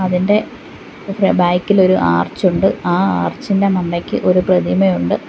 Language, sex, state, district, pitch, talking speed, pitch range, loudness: Malayalam, female, Kerala, Kollam, 185 Hz, 115 wpm, 175-195 Hz, -15 LUFS